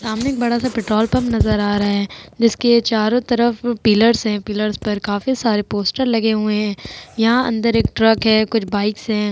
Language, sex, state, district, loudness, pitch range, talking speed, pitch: Hindi, female, Uttar Pradesh, Etah, -17 LUFS, 210-235 Hz, 200 wpm, 220 Hz